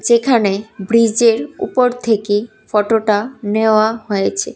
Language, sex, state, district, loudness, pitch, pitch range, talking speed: Bengali, female, Tripura, West Tripura, -15 LUFS, 220 Hz, 210-235 Hz, 90 wpm